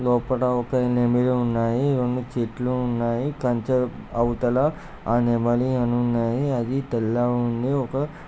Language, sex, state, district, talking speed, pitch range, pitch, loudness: Telugu, male, Andhra Pradesh, Guntur, 125 wpm, 120-130 Hz, 125 Hz, -23 LUFS